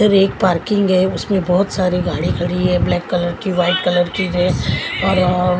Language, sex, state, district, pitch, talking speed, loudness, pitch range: Hindi, female, Maharashtra, Mumbai Suburban, 180 Hz, 195 wpm, -17 LUFS, 175-190 Hz